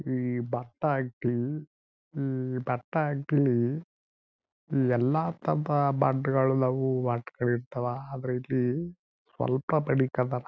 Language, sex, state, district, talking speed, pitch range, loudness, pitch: Kannada, male, Karnataka, Chamarajanagar, 55 wpm, 125-145 Hz, -29 LUFS, 130 Hz